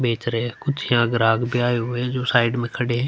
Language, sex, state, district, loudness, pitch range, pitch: Hindi, male, Uttar Pradesh, Hamirpur, -21 LUFS, 120-125 Hz, 120 Hz